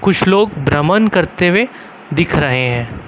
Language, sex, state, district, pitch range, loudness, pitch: Hindi, male, Uttar Pradesh, Lucknow, 145-195 Hz, -14 LUFS, 175 Hz